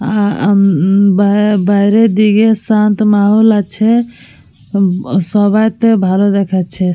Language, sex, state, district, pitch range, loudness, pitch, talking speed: Bengali, female, Jharkhand, Jamtara, 195-215 Hz, -11 LUFS, 205 Hz, 95 wpm